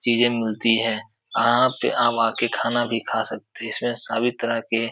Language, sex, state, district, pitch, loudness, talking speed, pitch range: Hindi, male, Uttar Pradesh, Etah, 115 Hz, -22 LUFS, 185 wpm, 115-120 Hz